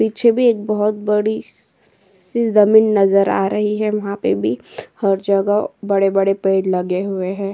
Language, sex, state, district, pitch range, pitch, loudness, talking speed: Hindi, female, Uttar Pradesh, Jyotiba Phule Nagar, 195-215 Hz, 200 Hz, -17 LUFS, 165 wpm